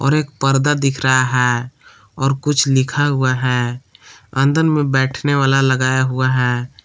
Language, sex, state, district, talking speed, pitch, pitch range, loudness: Hindi, male, Jharkhand, Palamu, 155 wpm, 135 Hz, 130-140 Hz, -16 LUFS